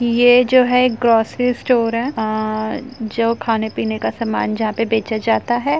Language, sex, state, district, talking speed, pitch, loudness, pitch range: Hindi, female, Uttar Pradesh, Jyotiba Phule Nagar, 175 wpm, 230 Hz, -17 LUFS, 220-245 Hz